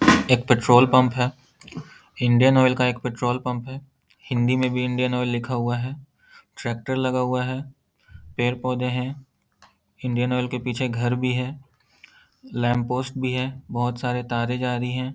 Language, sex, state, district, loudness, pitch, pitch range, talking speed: Hindi, male, Bihar, Lakhisarai, -23 LUFS, 125 Hz, 125-130 Hz, 165 wpm